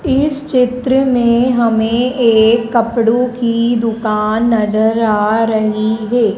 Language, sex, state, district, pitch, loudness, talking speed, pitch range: Hindi, female, Madhya Pradesh, Dhar, 230 Hz, -13 LUFS, 115 wpm, 220-245 Hz